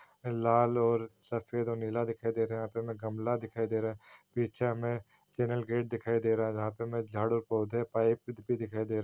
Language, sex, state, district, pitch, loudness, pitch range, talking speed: Hindi, male, Chhattisgarh, Kabirdham, 115 Hz, -33 LUFS, 110-120 Hz, 240 wpm